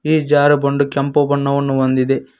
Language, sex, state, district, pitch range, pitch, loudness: Kannada, male, Karnataka, Koppal, 140-145 Hz, 140 Hz, -15 LUFS